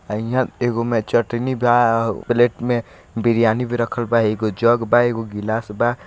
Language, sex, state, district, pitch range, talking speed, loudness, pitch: Hindi, male, Bihar, Gopalganj, 110-120 Hz, 160 wpm, -19 LUFS, 115 Hz